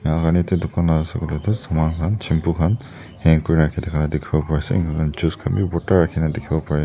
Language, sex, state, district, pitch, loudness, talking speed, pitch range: Nagamese, male, Nagaland, Dimapur, 80 Hz, -20 LUFS, 230 wpm, 80-90 Hz